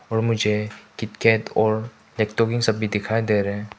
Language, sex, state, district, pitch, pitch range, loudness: Hindi, male, Manipur, Imphal West, 110 Hz, 105-115 Hz, -22 LUFS